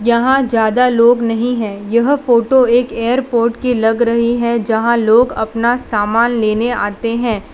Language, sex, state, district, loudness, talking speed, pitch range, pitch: Hindi, female, Gujarat, Valsad, -14 LUFS, 160 wpm, 225-245 Hz, 235 Hz